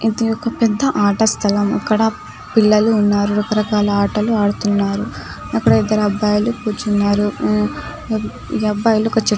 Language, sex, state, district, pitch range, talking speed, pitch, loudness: Telugu, female, Telangana, Nalgonda, 205-220 Hz, 120 wpm, 210 Hz, -17 LUFS